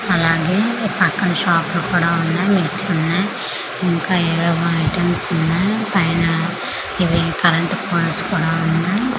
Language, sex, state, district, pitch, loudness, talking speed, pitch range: Telugu, female, Andhra Pradesh, Manyam, 175 Hz, -17 LUFS, 115 wpm, 165-190 Hz